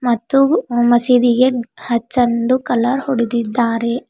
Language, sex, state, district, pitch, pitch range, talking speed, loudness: Kannada, female, Karnataka, Bidar, 240 Hz, 235-255 Hz, 90 wpm, -16 LUFS